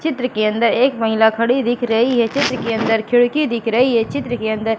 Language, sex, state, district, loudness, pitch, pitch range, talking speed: Hindi, female, Madhya Pradesh, Katni, -17 LUFS, 235 Hz, 225-250 Hz, 240 wpm